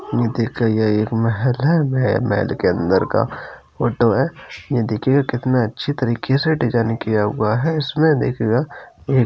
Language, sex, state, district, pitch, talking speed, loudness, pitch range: Hindi, male, Uttar Pradesh, Jalaun, 120 Hz, 155 wpm, -19 LUFS, 115-140 Hz